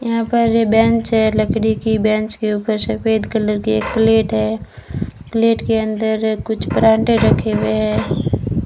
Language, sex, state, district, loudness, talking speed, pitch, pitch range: Hindi, female, Rajasthan, Bikaner, -16 LUFS, 165 wpm, 220 Hz, 210-225 Hz